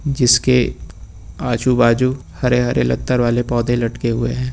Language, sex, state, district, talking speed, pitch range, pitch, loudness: Hindi, male, Uttar Pradesh, Lucknow, 145 wpm, 115-125 Hz, 120 Hz, -17 LUFS